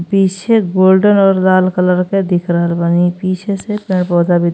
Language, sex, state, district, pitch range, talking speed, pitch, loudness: Bhojpuri, female, Uttar Pradesh, Ghazipur, 175-195 Hz, 200 wpm, 185 Hz, -13 LUFS